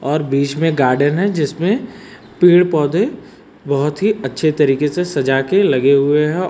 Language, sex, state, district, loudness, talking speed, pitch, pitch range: Hindi, male, Uttar Pradesh, Lucknow, -15 LUFS, 165 wpm, 150 Hz, 140-180 Hz